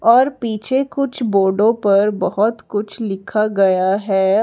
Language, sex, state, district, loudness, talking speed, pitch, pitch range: Hindi, female, Uttar Pradesh, Lalitpur, -17 LUFS, 135 wpm, 210 Hz, 195-230 Hz